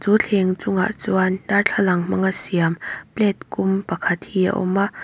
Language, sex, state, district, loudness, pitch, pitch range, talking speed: Mizo, female, Mizoram, Aizawl, -20 LUFS, 190 Hz, 185-205 Hz, 165 wpm